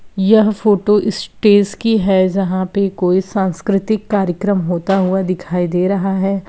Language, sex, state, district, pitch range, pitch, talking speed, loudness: Hindi, female, Bihar, Kishanganj, 185-205 Hz, 195 Hz, 150 wpm, -15 LUFS